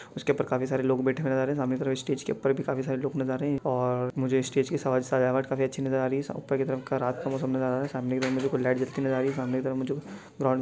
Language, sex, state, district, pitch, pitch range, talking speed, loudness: Hindi, male, Chhattisgarh, Bastar, 130 Hz, 130-135 Hz, 350 wpm, -28 LUFS